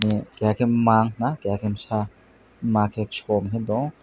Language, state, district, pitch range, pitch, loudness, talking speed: Kokborok, Tripura, West Tripura, 105-115 Hz, 110 Hz, -23 LUFS, 165 wpm